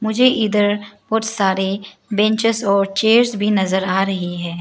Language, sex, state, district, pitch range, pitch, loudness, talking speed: Hindi, female, Arunachal Pradesh, Lower Dibang Valley, 190-220 Hz, 205 Hz, -17 LUFS, 155 wpm